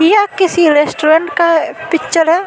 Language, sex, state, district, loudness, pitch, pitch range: Hindi, female, Bihar, Patna, -12 LUFS, 330 Hz, 320-355 Hz